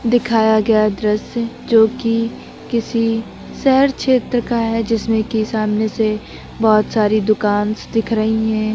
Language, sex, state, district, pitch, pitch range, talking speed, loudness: Hindi, female, Uttar Pradesh, Lucknow, 225 Hz, 215-230 Hz, 135 wpm, -17 LUFS